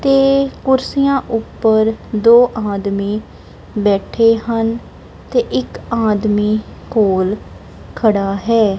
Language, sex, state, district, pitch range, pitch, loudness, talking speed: Punjabi, female, Punjab, Kapurthala, 210-235 Hz, 220 Hz, -15 LUFS, 90 wpm